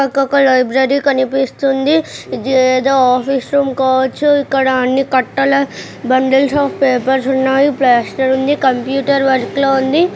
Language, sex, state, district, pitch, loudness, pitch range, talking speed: Telugu, female, Telangana, Nalgonda, 270 Hz, -13 LUFS, 260-275 Hz, 125 wpm